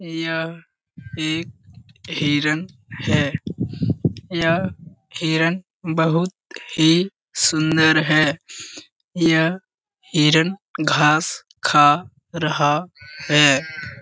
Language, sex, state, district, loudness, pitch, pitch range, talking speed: Hindi, male, Bihar, Jamui, -19 LUFS, 160 Hz, 150-170 Hz, 70 wpm